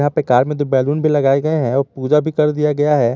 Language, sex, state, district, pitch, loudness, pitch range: Hindi, male, Jharkhand, Garhwa, 145 Hz, -16 LUFS, 135-150 Hz